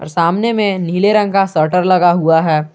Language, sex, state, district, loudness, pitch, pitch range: Hindi, male, Jharkhand, Garhwa, -13 LUFS, 180 Hz, 165-200 Hz